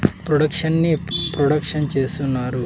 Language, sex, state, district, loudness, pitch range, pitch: Telugu, male, Andhra Pradesh, Sri Satya Sai, -20 LUFS, 140-165 Hz, 150 Hz